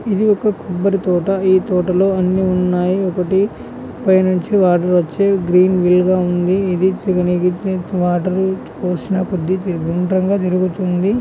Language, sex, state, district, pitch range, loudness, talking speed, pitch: Telugu, male, Andhra Pradesh, Guntur, 180-190 Hz, -16 LUFS, 135 wpm, 185 Hz